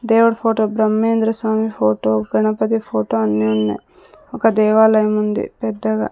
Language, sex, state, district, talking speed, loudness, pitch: Telugu, female, Andhra Pradesh, Sri Satya Sai, 125 wpm, -17 LUFS, 215 Hz